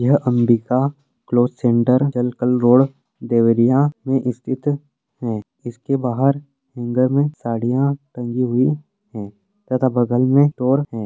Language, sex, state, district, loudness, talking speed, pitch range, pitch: Hindi, male, Uttar Pradesh, Deoria, -18 LUFS, 125 wpm, 120-140 Hz, 130 Hz